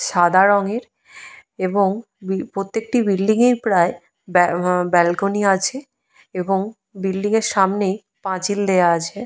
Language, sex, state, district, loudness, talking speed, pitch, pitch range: Bengali, female, Jharkhand, Jamtara, -19 LUFS, 115 wpm, 195 Hz, 185-210 Hz